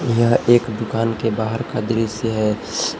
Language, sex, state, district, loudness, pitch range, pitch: Hindi, male, Jharkhand, Palamu, -19 LUFS, 110-115 Hz, 115 Hz